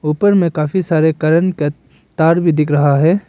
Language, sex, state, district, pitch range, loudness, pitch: Hindi, male, Arunachal Pradesh, Papum Pare, 150-175 Hz, -14 LUFS, 160 Hz